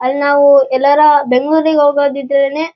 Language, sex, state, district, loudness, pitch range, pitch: Kannada, male, Karnataka, Shimoga, -11 LUFS, 275-295 Hz, 285 Hz